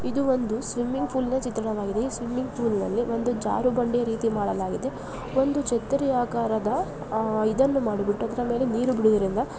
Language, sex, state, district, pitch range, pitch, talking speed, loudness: Kannada, female, Karnataka, Dakshina Kannada, 220-255 Hz, 235 Hz, 150 wpm, -26 LUFS